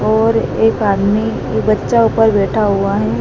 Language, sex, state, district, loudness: Hindi, male, Madhya Pradesh, Dhar, -14 LUFS